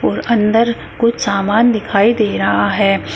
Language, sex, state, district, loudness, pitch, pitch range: Hindi, female, Uttar Pradesh, Shamli, -14 LUFS, 220 Hz, 200-230 Hz